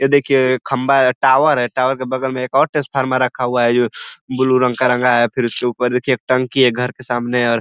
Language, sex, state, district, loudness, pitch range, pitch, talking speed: Hindi, male, Uttar Pradesh, Ghazipur, -16 LUFS, 125-130 Hz, 130 Hz, 245 wpm